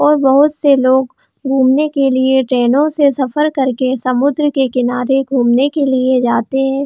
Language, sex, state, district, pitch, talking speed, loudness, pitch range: Hindi, female, Jharkhand, Jamtara, 265 Hz, 150 wpm, -13 LUFS, 255-285 Hz